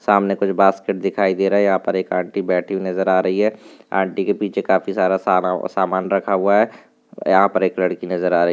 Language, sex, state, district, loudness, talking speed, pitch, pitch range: Hindi, male, Rajasthan, Nagaur, -19 LUFS, 225 wpm, 95 Hz, 95-100 Hz